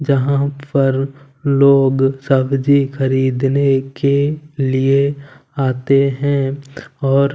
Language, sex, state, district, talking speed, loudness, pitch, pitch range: Hindi, male, Punjab, Kapurthala, 80 wpm, -16 LUFS, 140 Hz, 135-140 Hz